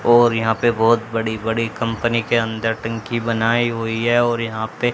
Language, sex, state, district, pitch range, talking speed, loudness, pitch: Hindi, male, Haryana, Charkhi Dadri, 115-120 Hz, 195 wpm, -19 LUFS, 115 Hz